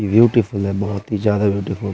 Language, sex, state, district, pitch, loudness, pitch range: Hindi, male, Uttar Pradesh, Muzaffarnagar, 105 Hz, -18 LUFS, 100-105 Hz